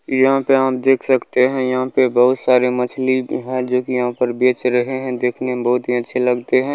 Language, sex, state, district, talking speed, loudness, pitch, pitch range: Maithili, male, Bihar, Saharsa, 240 wpm, -17 LUFS, 125 Hz, 125-130 Hz